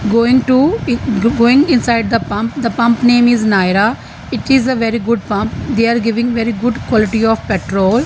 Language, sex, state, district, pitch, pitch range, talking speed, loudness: English, female, Punjab, Fazilka, 235 Hz, 220-245 Hz, 185 wpm, -13 LUFS